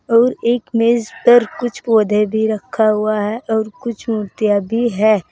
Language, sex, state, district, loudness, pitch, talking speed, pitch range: Hindi, female, Uttar Pradesh, Saharanpur, -16 LUFS, 220 Hz, 170 wpm, 215-235 Hz